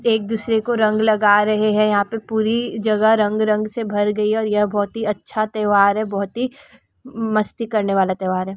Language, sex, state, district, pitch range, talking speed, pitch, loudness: Hindi, female, West Bengal, Purulia, 205-220 Hz, 205 wpm, 215 Hz, -19 LUFS